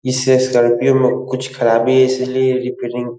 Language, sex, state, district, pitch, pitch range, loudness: Hindi, male, Bihar, Lakhisarai, 130 Hz, 120-130 Hz, -15 LUFS